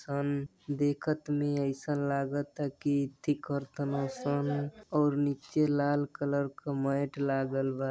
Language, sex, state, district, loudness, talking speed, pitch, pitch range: Bhojpuri, male, Uttar Pradesh, Deoria, -32 LUFS, 135 wpm, 145 Hz, 140-145 Hz